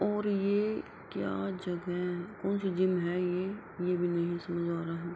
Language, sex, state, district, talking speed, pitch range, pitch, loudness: Hindi, female, Bihar, Kishanganj, 195 wpm, 175-195 Hz, 180 Hz, -33 LUFS